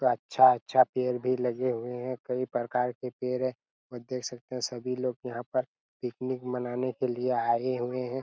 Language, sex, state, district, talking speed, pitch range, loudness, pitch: Hindi, male, Chhattisgarh, Raigarh, 195 wpm, 125-130 Hz, -30 LUFS, 125 Hz